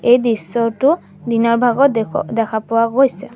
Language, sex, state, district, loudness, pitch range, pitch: Assamese, female, Assam, Sonitpur, -16 LUFS, 225-255 Hz, 235 Hz